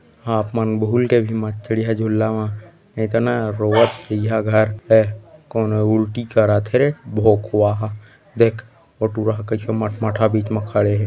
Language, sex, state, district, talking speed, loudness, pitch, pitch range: Chhattisgarhi, male, Chhattisgarh, Korba, 185 wpm, -19 LUFS, 110 Hz, 105-115 Hz